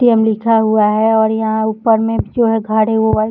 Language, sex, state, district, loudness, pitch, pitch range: Hindi, female, Bihar, Jahanabad, -14 LUFS, 220 Hz, 220-225 Hz